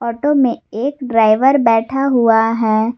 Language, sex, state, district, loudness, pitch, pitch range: Hindi, female, Jharkhand, Garhwa, -14 LUFS, 235 Hz, 225-270 Hz